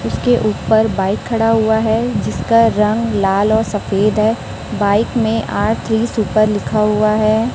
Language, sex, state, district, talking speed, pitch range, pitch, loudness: Hindi, female, Chhattisgarh, Raipur, 160 wpm, 210-225 Hz, 220 Hz, -15 LUFS